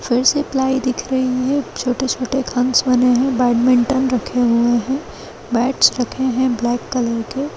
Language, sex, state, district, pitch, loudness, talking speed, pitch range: Hindi, female, Chhattisgarh, Kabirdham, 255 Hz, -17 LUFS, 175 wpm, 245-265 Hz